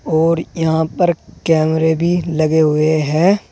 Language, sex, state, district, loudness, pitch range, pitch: Hindi, male, Uttar Pradesh, Saharanpur, -15 LUFS, 155-170 Hz, 160 Hz